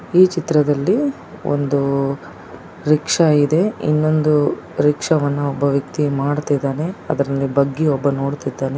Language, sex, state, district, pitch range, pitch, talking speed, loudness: Kannada, male, Karnataka, Dakshina Kannada, 140-155 Hz, 145 Hz, 110 wpm, -18 LUFS